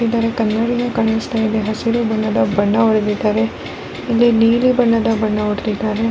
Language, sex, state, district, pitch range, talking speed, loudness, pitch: Kannada, female, Karnataka, Raichur, 215-230 Hz, 130 wpm, -16 LUFS, 225 Hz